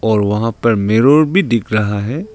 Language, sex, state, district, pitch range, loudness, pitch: Hindi, male, Arunachal Pradesh, Longding, 105-140 Hz, -14 LUFS, 115 Hz